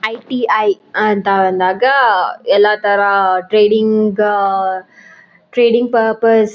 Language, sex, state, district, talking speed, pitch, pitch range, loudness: Kannada, female, Karnataka, Mysore, 90 wpm, 210 Hz, 195-225 Hz, -13 LUFS